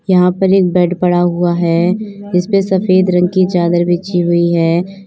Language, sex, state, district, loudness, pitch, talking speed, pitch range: Hindi, female, Uttar Pradesh, Lalitpur, -13 LUFS, 180 Hz, 190 wpm, 175-190 Hz